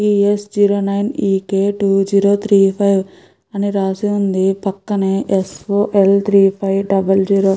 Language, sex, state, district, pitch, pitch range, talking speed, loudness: Telugu, female, Andhra Pradesh, Krishna, 200 Hz, 195-205 Hz, 175 wpm, -15 LUFS